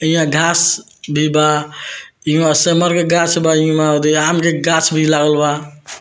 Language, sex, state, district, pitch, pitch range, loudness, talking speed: Bhojpuri, male, Bihar, Muzaffarpur, 155 Hz, 150-170 Hz, -14 LUFS, 160 wpm